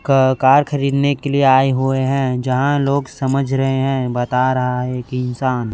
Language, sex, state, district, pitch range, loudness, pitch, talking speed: Hindi, male, Chhattisgarh, Raipur, 125-140 Hz, -17 LUFS, 135 Hz, 190 wpm